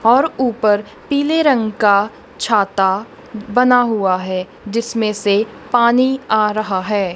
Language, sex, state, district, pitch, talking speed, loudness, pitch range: Hindi, female, Punjab, Kapurthala, 215 Hz, 125 wpm, -16 LUFS, 205-245 Hz